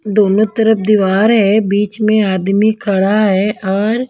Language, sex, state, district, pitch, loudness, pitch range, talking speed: Hindi, female, Punjab, Kapurthala, 210 Hz, -13 LUFS, 195-215 Hz, 160 wpm